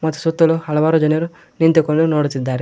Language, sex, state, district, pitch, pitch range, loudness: Kannada, male, Karnataka, Koppal, 160 Hz, 150-165 Hz, -16 LUFS